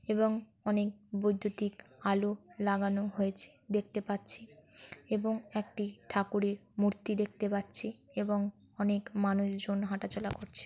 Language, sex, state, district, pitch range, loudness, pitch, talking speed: Bengali, female, West Bengal, Jalpaiguri, 200-210 Hz, -34 LUFS, 205 Hz, 105 wpm